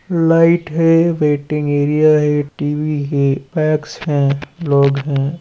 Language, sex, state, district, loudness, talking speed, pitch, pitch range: Hindi, male, Chhattisgarh, Raigarh, -15 LUFS, 135 wpm, 150 Hz, 145-160 Hz